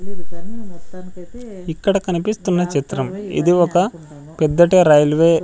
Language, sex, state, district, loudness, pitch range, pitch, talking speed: Telugu, male, Andhra Pradesh, Sri Satya Sai, -16 LUFS, 165-195 Hz, 175 Hz, 90 wpm